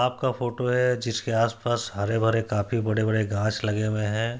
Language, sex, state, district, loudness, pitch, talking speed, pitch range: Hindi, male, Bihar, Supaul, -25 LUFS, 115 Hz, 175 wpm, 110-120 Hz